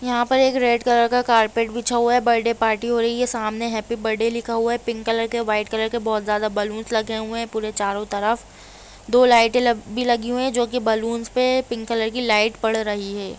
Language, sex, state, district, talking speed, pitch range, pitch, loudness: Hindi, female, Jharkhand, Jamtara, 240 wpm, 220-240 Hz, 230 Hz, -20 LUFS